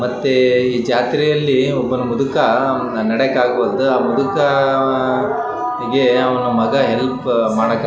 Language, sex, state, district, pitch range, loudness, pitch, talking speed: Kannada, male, Karnataka, Raichur, 120-135 Hz, -16 LUFS, 125 Hz, 115 wpm